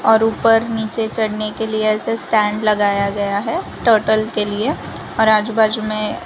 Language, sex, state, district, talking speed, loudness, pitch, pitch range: Hindi, female, Gujarat, Valsad, 175 wpm, -17 LUFS, 220 Hz, 210-225 Hz